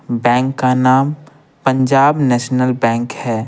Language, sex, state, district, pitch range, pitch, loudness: Hindi, male, Bihar, Patna, 120-140 Hz, 130 Hz, -15 LUFS